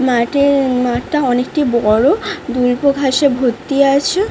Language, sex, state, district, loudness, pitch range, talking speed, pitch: Bengali, female, West Bengal, Dakshin Dinajpur, -14 LUFS, 250-285 Hz, 110 wpm, 270 Hz